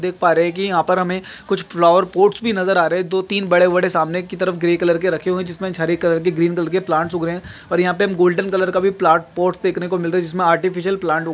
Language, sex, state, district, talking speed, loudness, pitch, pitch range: Hindi, male, Maharashtra, Nagpur, 305 wpm, -18 LUFS, 180 Hz, 170-185 Hz